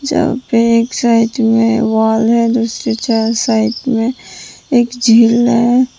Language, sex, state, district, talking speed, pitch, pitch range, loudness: Hindi, female, Tripura, Dhalai, 140 wpm, 230 Hz, 225-240 Hz, -13 LUFS